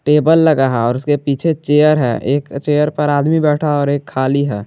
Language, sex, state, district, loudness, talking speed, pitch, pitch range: Hindi, male, Jharkhand, Garhwa, -14 LUFS, 220 wpm, 145 Hz, 135-150 Hz